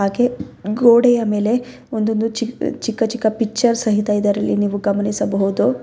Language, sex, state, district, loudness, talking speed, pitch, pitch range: Kannada, female, Karnataka, Bellary, -18 LUFS, 135 wpm, 220 Hz, 205-235 Hz